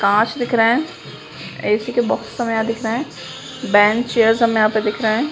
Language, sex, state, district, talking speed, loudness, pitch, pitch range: Hindi, female, Bihar, Jamui, 215 wpm, -17 LUFS, 225 Hz, 215-240 Hz